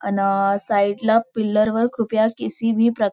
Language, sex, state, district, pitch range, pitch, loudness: Marathi, female, Maharashtra, Nagpur, 200-225 Hz, 220 Hz, -20 LUFS